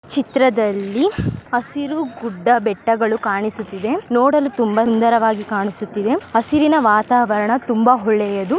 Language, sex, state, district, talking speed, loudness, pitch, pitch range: Kannada, female, Karnataka, Belgaum, 90 wpm, -17 LUFS, 230 Hz, 215-250 Hz